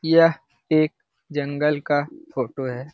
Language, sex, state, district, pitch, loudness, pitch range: Hindi, male, Bihar, Lakhisarai, 145 Hz, -23 LUFS, 135-155 Hz